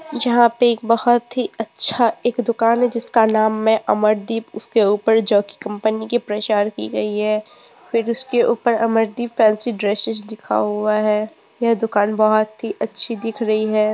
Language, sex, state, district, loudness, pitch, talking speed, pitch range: Hindi, female, Bihar, Purnia, -18 LUFS, 225 Hz, 170 wpm, 215-235 Hz